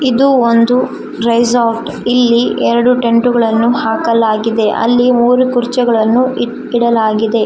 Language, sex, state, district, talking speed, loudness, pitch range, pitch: Kannada, female, Karnataka, Koppal, 40 wpm, -12 LUFS, 230-245 Hz, 235 Hz